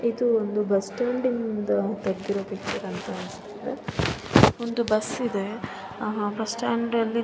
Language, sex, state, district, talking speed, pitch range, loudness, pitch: Kannada, female, Karnataka, Shimoga, 110 wpm, 205-235 Hz, -26 LUFS, 220 Hz